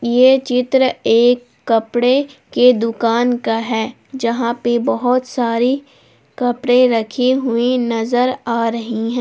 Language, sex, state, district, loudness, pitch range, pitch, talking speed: Hindi, female, Jharkhand, Palamu, -16 LUFS, 230-250 Hz, 245 Hz, 125 wpm